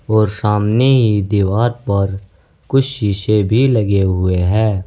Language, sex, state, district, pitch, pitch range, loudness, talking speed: Hindi, male, Uttar Pradesh, Saharanpur, 105 Hz, 95-115 Hz, -15 LUFS, 135 wpm